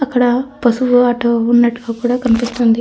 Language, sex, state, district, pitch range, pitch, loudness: Telugu, female, Andhra Pradesh, Krishna, 235-245 Hz, 240 Hz, -14 LUFS